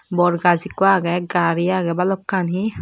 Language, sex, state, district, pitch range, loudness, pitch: Chakma, female, Tripura, Dhalai, 175-190 Hz, -19 LUFS, 180 Hz